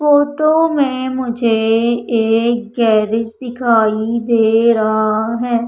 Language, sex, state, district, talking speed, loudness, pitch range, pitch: Hindi, female, Madhya Pradesh, Umaria, 95 wpm, -15 LUFS, 225-250 Hz, 235 Hz